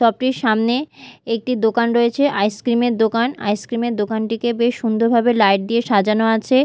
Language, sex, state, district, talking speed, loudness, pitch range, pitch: Bengali, female, Odisha, Malkangiri, 160 wpm, -18 LUFS, 220-240 Hz, 230 Hz